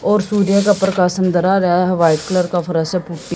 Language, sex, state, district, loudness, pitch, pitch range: Hindi, female, Haryana, Jhajjar, -15 LUFS, 180 Hz, 175-195 Hz